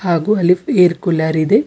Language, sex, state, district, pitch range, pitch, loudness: Kannada, male, Karnataka, Bidar, 170-190 Hz, 175 Hz, -14 LUFS